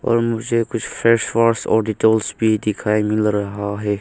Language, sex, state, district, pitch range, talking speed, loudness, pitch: Hindi, male, Arunachal Pradesh, Longding, 105-115 Hz, 180 wpm, -18 LUFS, 110 Hz